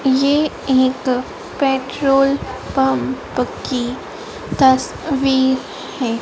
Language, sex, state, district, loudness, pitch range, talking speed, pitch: Hindi, female, Madhya Pradesh, Dhar, -18 LUFS, 250-275 Hz, 70 wpm, 260 Hz